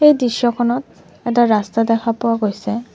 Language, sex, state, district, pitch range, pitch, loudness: Assamese, female, Assam, Sonitpur, 225-240 Hz, 235 Hz, -17 LUFS